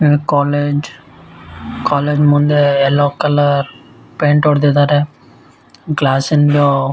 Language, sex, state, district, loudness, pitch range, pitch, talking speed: Kannada, male, Karnataka, Bellary, -13 LUFS, 145-150 Hz, 145 Hz, 85 wpm